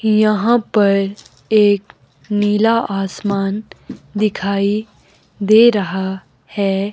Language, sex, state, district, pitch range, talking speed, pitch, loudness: Hindi, female, Himachal Pradesh, Shimla, 195-215 Hz, 80 wpm, 205 Hz, -16 LUFS